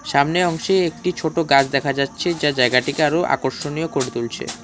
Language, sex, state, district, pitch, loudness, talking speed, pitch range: Bengali, male, West Bengal, Alipurduar, 145 Hz, -19 LUFS, 170 wpm, 135-170 Hz